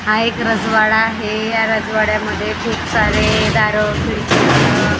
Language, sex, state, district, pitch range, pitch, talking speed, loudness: Marathi, female, Maharashtra, Gondia, 215-225 Hz, 220 Hz, 130 wpm, -15 LUFS